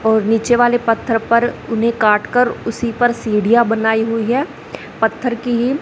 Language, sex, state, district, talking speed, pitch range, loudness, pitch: Hindi, female, Haryana, Charkhi Dadri, 165 wpm, 225-240 Hz, -16 LUFS, 230 Hz